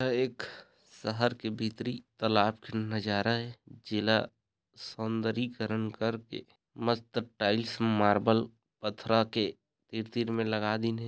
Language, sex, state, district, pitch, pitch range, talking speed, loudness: Chhattisgarhi, male, Chhattisgarh, Raigarh, 115 Hz, 110-115 Hz, 120 wpm, -31 LUFS